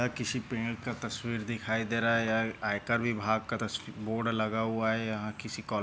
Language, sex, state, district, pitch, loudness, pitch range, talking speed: Hindi, male, Maharashtra, Nagpur, 115 Hz, -32 LUFS, 110-115 Hz, 215 wpm